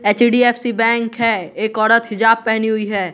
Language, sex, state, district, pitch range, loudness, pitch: Hindi, male, Bihar, West Champaran, 220-235 Hz, -15 LUFS, 225 Hz